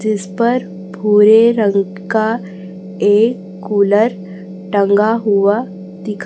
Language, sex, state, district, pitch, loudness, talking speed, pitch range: Hindi, female, Chhattisgarh, Raipur, 205 Hz, -14 LUFS, 95 wpm, 190-215 Hz